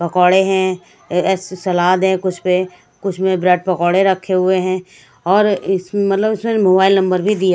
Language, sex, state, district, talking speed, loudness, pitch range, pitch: Hindi, female, Punjab, Kapurthala, 165 wpm, -15 LUFS, 180-195 Hz, 185 Hz